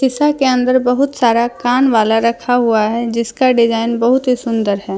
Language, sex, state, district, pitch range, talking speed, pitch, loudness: Hindi, female, Jharkhand, Deoghar, 230-255 Hz, 195 wpm, 235 Hz, -14 LUFS